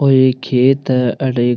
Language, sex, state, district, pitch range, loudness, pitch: Rajasthani, male, Rajasthan, Nagaur, 125-135 Hz, -14 LUFS, 130 Hz